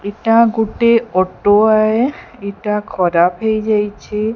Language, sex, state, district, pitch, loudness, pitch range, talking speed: Odia, female, Odisha, Sambalpur, 215 Hz, -15 LUFS, 205-225 Hz, 125 wpm